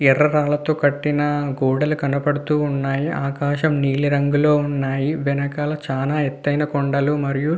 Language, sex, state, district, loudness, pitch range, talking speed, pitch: Telugu, male, Andhra Pradesh, Visakhapatnam, -20 LUFS, 140-150 Hz, 140 wpm, 145 Hz